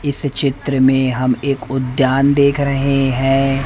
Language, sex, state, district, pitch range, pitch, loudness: Hindi, male, Madhya Pradesh, Umaria, 130-140 Hz, 135 Hz, -16 LUFS